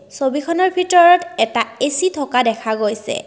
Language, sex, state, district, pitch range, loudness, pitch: Assamese, female, Assam, Kamrup Metropolitan, 230-350 Hz, -16 LUFS, 275 Hz